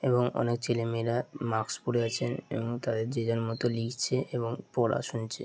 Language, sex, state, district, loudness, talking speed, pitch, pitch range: Bengali, male, West Bengal, Dakshin Dinajpur, -31 LUFS, 165 wpm, 120 Hz, 115-125 Hz